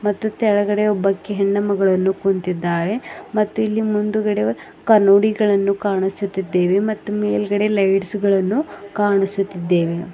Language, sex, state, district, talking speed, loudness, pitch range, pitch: Kannada, female, Karnataka, Bidar, 90 wpm, -19 LUFS, 190-210 Hz, 200 Hz